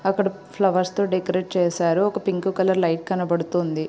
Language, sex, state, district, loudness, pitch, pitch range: Telugu, female, Andhra Pradesh, Srikakulam, -22 LUFS, 185 Hz, 175-195 Hz